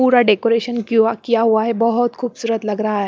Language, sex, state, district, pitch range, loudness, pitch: Hindi, female, Punjab, Pathankot, 220-235 Hz, -17 LUFS, 230 Hz